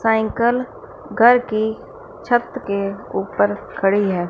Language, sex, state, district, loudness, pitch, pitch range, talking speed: Hindi, female, Punjab, Fazilka, -19 LUFS, 230 Hz, 200-255 Hz, 110 wpm